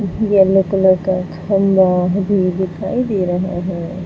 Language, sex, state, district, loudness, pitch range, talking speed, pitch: Hindi, female, Uttar Pradesh, Saharanpur, -16 LUFS, 185-195 Hz, 120 wpm, 190 Hz